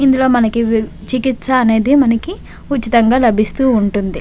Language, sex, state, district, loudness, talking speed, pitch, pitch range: Telugu, female, Andhra Pradesh, Visakhapatnam, -13 LUFS, 130 wpm, 240 Hz, 220-260 Hz